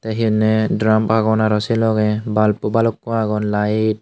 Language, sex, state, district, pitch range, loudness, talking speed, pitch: Chakma, male, Tripura, Unakoti, 105-110 Hz, -17 LUFS, 195 wpm, 110 Hz